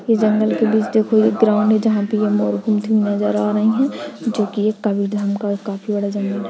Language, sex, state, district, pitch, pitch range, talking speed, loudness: Hindi, female, Chhattisgarh, Kabirdham, 210 Hz, 205-220 Hz, 250 wpm, -18 LUFS